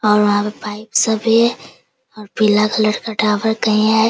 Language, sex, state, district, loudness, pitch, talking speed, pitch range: Hindi, female, Bihar, Sitamarhi, -16 LUFS, 215 Hz, 205 wpm, 210-220 Hz